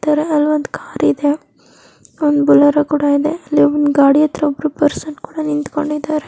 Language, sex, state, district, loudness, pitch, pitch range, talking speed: Kannada, female, Karnataka, Dakshina Kannada, -15 LUFS, 295 Hz, 290-305 Hz, 145 wpm